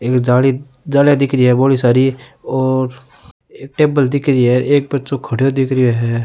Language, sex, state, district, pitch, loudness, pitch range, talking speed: Rajasthani, male, Rajasthan, Nagaur, 130 Hz, -14 LUFS, 125-140 Hz, 180 wpm